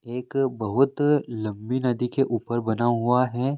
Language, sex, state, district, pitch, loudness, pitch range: Hindi, male, Bihar, Vaishali, 125 Hz, -24 LUFS, 120-135 Hz